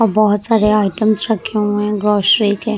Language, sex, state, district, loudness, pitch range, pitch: Hindi, female, Bihar, Vaishali, -14 LUFS, 205-215 Hz, 210 Hz